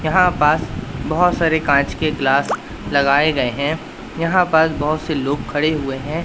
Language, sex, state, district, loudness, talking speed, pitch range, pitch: Hindi, male, Madhya Pradesh, Katni, -18 LUFS, 175 wpm, 140-160 Hz, 155 Hz